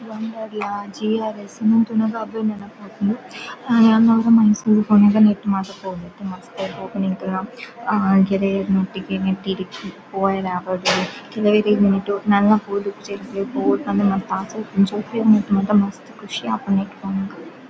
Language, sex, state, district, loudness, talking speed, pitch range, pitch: Tulu, female, Karnataka, Dakshina Kannada, -19 LUFS, 80 wpm, 195-220 Hz, 205 Hz